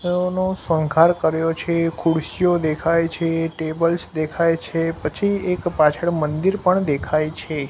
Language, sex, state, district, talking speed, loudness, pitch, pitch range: Gujarati, male, Gujarat, Gandhinagar, 135 wpm, -20 LUFS, 165 Hz, 155-175 Hz